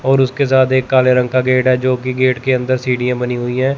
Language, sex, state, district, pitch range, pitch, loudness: Hindi, male, Chandigarh, Chandigarh, 125-130 Hz, 130 Hz, -15 LUFS